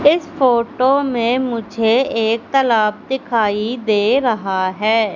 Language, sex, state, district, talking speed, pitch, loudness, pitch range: Hindi, female, Madhya Pradesh, Katni, 115 wpm, 235 Hz, -17 LUFS, 220-260 Hz